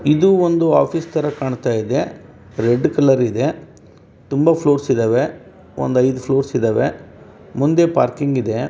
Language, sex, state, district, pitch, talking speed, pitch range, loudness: Kannada, male, Karnataka, Bellary, 140 Hz, 130 wpm, 125-155 Hz, -17 LUFS